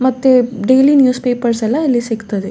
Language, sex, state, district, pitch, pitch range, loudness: Kannada, female, Karnataka, Dakshina Kannada, 245 Hz, 230-260 Hz, -13 LUFS